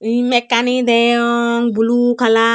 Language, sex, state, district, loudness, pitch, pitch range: Chakma, female, Tripura, Unakoti, -14 LUFS, 235 Hz, 235-240 Hz